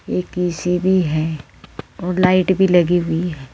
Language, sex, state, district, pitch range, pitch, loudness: Hindi, female, Uttar Pradesh, Saharanpur, 160-185 Hz, 175 Hz, -18 LUFS